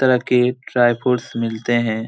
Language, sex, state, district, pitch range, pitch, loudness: Hindi, male, Jharkhand, Jamtara, 115-125 Hz, 120 Hz, -18 LUFS